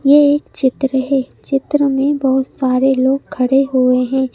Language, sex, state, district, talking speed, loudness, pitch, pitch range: Hindi, female, Madhya Pradesh, Bhopal, 165 wpm, -15 LUFS, 270 Hz, 260-275 Hz